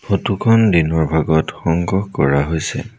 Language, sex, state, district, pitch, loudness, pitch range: Assamese, male, Assam, Sonitpur, 85 Hz, -16 LUFS, 80-105 Hz